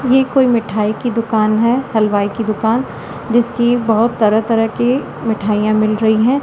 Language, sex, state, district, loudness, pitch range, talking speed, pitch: Hindi, female, Madhya Pradesh, Katni, -15 LUFS, 215-240 Hz, 170 wpm, 225 Hz